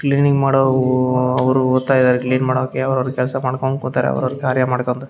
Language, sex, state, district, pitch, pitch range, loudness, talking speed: Kannada, male, Karnataka, Raichur, 130 Hz, 125-130 Hz, -17 LUFS, 165 wpm